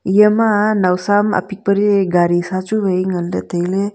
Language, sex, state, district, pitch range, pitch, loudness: Wancho, female, Arunachal Pradesh, Longding, 180-205 Hz, 195 Hz, -16 LUFS